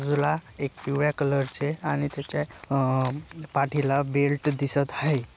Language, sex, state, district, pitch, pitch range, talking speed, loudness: Marathi, male, Maharashtra, Dhule, 140 Hz, 140-150 Hz, 125 wpm, -27 LUFS